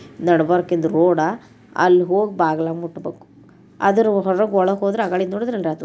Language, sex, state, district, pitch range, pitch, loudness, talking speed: Kannada, female, Karnataka, Bijapur, 170-200 Hz, 180 Hz, -18 LUFS, 145 wpm